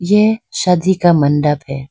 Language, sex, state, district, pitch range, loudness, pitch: Hindi, female, Arunachal Pradesh, Lower Dibang Valley, 145-190 Hz, -14 LUFS, 175 Hz